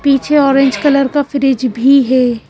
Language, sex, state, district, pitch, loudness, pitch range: Hindi, female, Madhya Pradesh, Bhopal, 275 Hz, -12 LUFS, 255-280 Hz